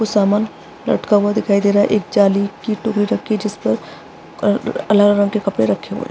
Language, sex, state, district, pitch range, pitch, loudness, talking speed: Hindi, female, Chhattisgarh, Bastar, 205-215 Hz, 205 Hz, -17 LUFS, 245 wpm